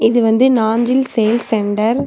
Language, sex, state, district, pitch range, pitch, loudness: Tamil, female, Tamil Nadu, Kanyakumari, 220-250 Hz, 230 Hz, -14 LUFS